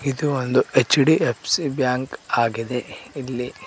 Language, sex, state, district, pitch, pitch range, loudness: Kannada, male, Karnataka, Koppal, 130 Hz, 125-140 Hz, -21 LUFS